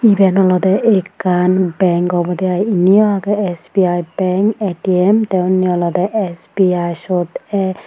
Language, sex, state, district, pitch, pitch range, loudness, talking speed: Chakma, female, Tripura, Unakoti, 185 Hz, 180-200 Hz, -15 LUFS, 175 wpm